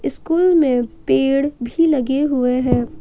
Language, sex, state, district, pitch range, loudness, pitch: Hindi, female, Jharkhand, Ranchi, 250-300 Hz, -17 LUFS, 270 Hz